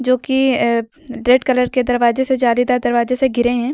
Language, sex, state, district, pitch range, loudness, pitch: Hindi, female, Uttar Pradesh, Lucknow, 240-260 Hz, -16 LUFS, 250 Hz